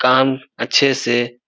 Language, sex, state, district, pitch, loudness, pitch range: Hindi, male, Bihar, Supaul, 130 Hz, -17 LUFS, 120-135 Hz